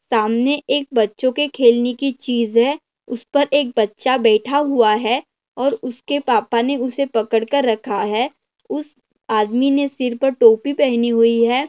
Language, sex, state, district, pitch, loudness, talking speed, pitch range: Hindi, female, Maharashtra, Pune, 250 Hz, -18 LUFS, 170 wpm, 230-275 Hz